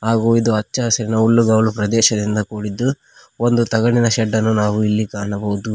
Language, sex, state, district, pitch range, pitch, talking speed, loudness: Kannada, male, Karnataka, Koppal, 105-115 Hz, 110 Hz, 145 wpm, -17 LUFS